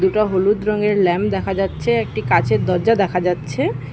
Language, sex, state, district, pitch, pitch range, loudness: Bengali, female, West Bengal, Alipurduar, 185 Hz, 135-205 Hz, -18 LUFS